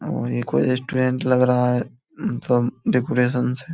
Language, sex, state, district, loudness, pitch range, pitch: Hindi, male, Bihar, Samastipur, -21 LUFS, 125-130 Hz, 125 Hz